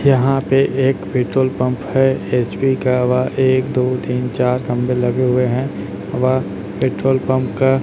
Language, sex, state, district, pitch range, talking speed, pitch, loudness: Hindi, male, Chhattisgarh, Raipur, 125-130 Hz, 160 wpm, 130 Hz, -17 LUFS